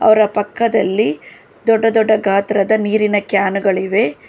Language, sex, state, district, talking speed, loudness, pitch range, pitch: Kannada, female, Karnataka, Bangalore, 125 wpm, -15 LUFS, 195-220 Hz, 210 Hz